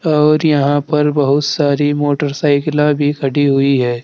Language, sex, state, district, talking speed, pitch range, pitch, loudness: Hindi, male, Uttar Pradesh, Saharanpur, 150 wpm, 140-150 Hz, 145 Hz, -14 LUFS